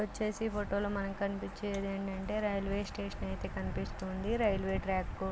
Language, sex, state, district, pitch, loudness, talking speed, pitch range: Telugu, female, Andhra Pradesh, Guntur, 195 Hz, -36 LUFS, 145 wpm, 190-205 Hz